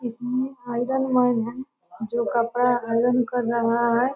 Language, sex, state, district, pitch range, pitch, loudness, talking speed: Hindi, female, Bihar, Purnia, 235-250 Hz, 240 Hz, -23 LUFS, 130 wpm